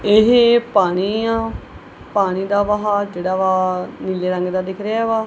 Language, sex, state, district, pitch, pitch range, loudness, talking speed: Punjabi, female, Punjab, Kapurthala, 205 Hz, 185-220 Hz, -18 LUFS, 160 wpm